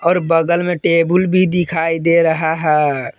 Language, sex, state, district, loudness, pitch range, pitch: Hindi, male, Jharkhand, Palamu, -15 LUFS, 160-175 Hz, 165 Hz